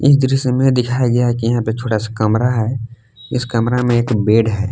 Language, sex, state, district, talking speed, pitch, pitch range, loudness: Hindi, male, Jharkhand, Palamu, 230 wpm, 120 Hz, 110-125 Hz, -16 LUFS